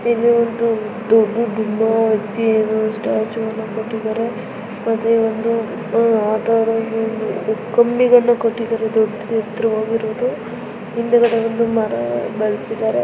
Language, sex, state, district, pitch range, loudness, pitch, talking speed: Kannada, female, Karnataka, Dharwad, 220-230 Hz, -18 LUFS, 225 Hz, 80 wpm